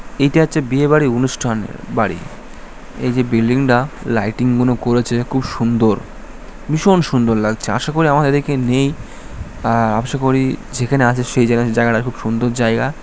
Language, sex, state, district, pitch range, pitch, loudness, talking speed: Bengali, male, West Bengal, North 24 Parganas, 115-135 Hz, 125 Hz, -16 LUFS, 160 wpm